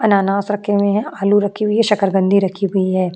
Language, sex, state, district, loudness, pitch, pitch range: Hindi, female, Uttar Pradesh, Jyotiba Phule Nagar, -16 LUFS, 200 Hz, 195-205 Hz